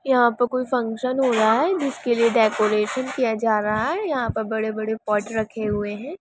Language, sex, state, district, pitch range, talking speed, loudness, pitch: Hindi, female, Bihar, Sitamarhi, 220-255 Hz, 205 wpm, -22 LUFS, 225 Hz